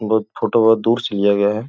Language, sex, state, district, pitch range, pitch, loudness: Hindi, male, Uttar Pradesh, Gorakhpur, 105-115 Hz, 110 Hz, -17 LUFS